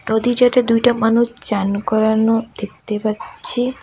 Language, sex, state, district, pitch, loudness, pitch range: Bengali, female, West Bengal, Alipurduar, 225 Hz, -17 LUFS, 215-245 Hz